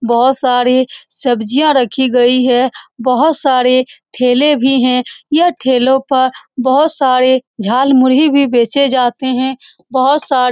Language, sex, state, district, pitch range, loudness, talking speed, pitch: Hindi, female, Bihar, Saran, 250-275 Hz, -12 LUFS, 135 wpm, 260 Hz